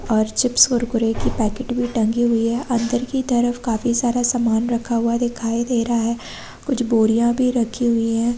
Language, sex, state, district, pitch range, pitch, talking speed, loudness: Hindi, female, Chhattisgarh, Balrampur, 230-245 Hz, 235 Hz, 185 wpm, -19 LUFS